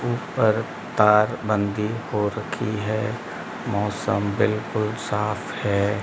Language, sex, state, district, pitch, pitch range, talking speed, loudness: Hindi, male, Rajasthan, Bikaner, 105 Hz, 105-110 Hz, 100 wpm, -24 LUFS